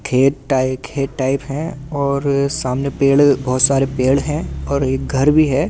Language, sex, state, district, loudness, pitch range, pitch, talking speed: Hindi, male, Delhi, New Delhi, -17 LUFS, 135-140 Hz, 140 Hz, 190 wpm